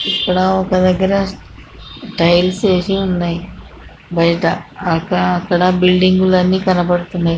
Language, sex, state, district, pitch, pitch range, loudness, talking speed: Telugu, female, Telangana, Karimnagar, 180 Hz, 175-190 Hz, -15 LUFS, 95 wpm